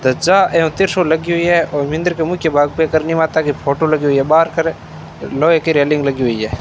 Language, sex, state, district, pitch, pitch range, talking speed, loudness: Hindi, male, Rajasthan, Bikaner, 160 Hz, 145-165 Hz, 245 wpm, -15 LUFS